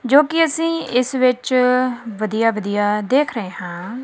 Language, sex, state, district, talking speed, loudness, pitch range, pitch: Punjabi, female, Punjab, Kapurthala, 135 wpm, -18 LUFS, 215-265 Hz, 250 Hz